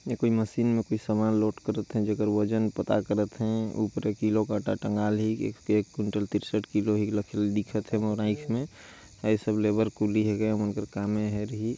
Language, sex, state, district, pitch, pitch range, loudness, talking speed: Chhattisgarhi, male, Chhattisgarh, Jashpur, 105 Hz, 105-110 Hz, -28 LUFS, 170 wpm